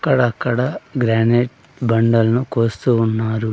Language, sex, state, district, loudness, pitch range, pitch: Telugu, male, Andhra Pradesh, Sri Satya Sai, -18 LUFS, 115-125 Hz, 115 Hz